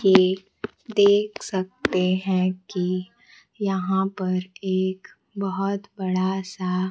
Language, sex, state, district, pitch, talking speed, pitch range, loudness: Hindi, female, Bihar, Kaimur, 190 Hz, 95 wpm, 185-195 Hz, -24 LUFS